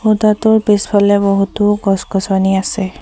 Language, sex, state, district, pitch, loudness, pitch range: Assamese, female, Assam, Sonitpur, 200 Hz, -13 LUFS, 195-210 Hz